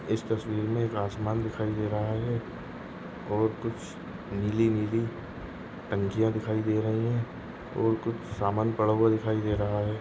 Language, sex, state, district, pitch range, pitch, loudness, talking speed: Hindi, male, Goa, North and South Goa, 105-115 Hz, 110 Hz, -29 LUFS, 155 wpm